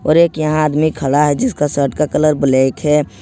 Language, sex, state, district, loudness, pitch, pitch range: Hindi, male, Jharkhand, Ranchi, -15 LUFS, 150 Hz, 140-155 Hz